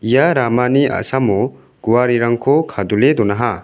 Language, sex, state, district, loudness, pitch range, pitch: Garo, male, Meghalaya, South Garo Hills, -15 LUFS, 110-135 Hz, 120 Hz